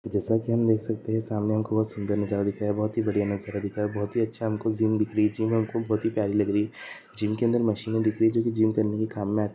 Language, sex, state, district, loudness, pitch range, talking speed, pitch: Hindi, male, Maharashtra, Aurangabad, -26 LUFS, 105-110 Hz, 295 wpm, 110 Hz